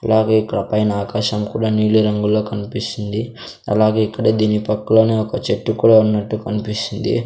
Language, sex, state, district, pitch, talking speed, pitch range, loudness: Telugu, male, Andhra Pradesh, Sri Satya Sai, 110 Hz, 140 wpm, 105-110 Hz, -17 LUFS